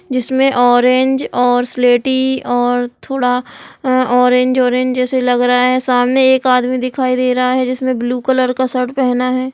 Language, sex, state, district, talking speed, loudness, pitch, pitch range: Hindi, female, Bihar, Jahanabad, 170 wpm, -14 LUFS, 255 Hz, 250-260 Hz